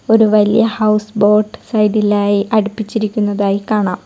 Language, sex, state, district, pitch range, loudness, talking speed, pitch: Malayalam, female, Kerala, Kollam, 205-220 Hz, -14 LUFS, 120 wpm, 210 Hz